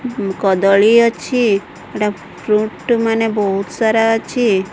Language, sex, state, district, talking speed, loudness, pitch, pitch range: Odia, female, Odisha, Sambalpur, 90 wpm, -15 LUFS, 215 Hz, 195-225 Hz